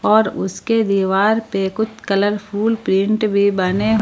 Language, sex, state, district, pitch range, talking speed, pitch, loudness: Hindi, female, Jharkhand, Palamu, 195-220 Hz, 135 wpm, 205 Hz, -18 LUFS